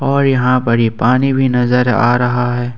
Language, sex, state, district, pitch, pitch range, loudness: Hindi, male, Jharkhand, Ranchi, 125 Hz, 120-130 Hz, -13 LUFS